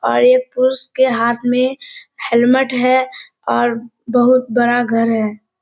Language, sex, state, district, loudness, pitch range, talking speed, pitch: Hindi, female, Bihar, Kishanganj, -15 LUFS, 235-260 Hz, 140 wpm, 250 Hz